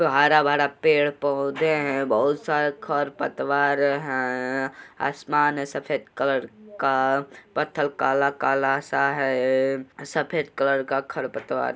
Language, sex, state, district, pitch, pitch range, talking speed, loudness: Hindi, male, Uttar Pradesh, Gorakhpur, 140 Hz, 135-145 Hz, 135 wpm, -23 LUFS